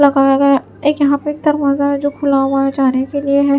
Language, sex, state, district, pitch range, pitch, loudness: Hindi, female, Chhattisgarh, Raipur, 275-285 Hz, 280 Hz, -14 LUFS